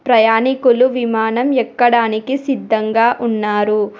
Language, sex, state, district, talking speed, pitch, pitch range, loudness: Telugu, female, Telangana, Hyderabad, 75 wpm, 235 Hz, 220-250 Hz, -15 LUFS